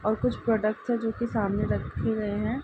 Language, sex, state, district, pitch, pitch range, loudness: Hindi, female, Uttar Pradesh, Ghazipur, 220 Hz, 215-230 Hz, -28 LUFS